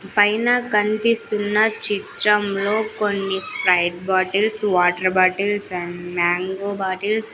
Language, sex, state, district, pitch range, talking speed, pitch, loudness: Telugu, female, Andhra Pradesh, Sri Satya Sai, 185-210 Hz, 100 wpm, 200 Hz, -20 LUFS